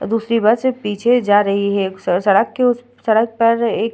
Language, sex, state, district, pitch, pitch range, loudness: Hindi, female, Bihar, Vaishali, 225 Hz, 205-235 Hz, -16 LUFS